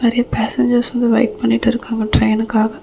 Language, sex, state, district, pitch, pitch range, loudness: Tamil, female, Tamil Nadu, Chennai, 235 Hz, 220-240 Hz, -16 LUFS